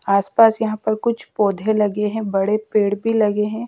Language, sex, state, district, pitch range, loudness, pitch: Hindi, female, Madhya Pradesh, Dhar, 205-220 Hz, -19 LUFS, 215 Hz